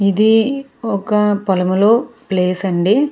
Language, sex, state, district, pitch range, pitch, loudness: Telugu, female, Andhra Pradesh, Krishna, 190-225 Hz, 205 Hz, -16 LUFS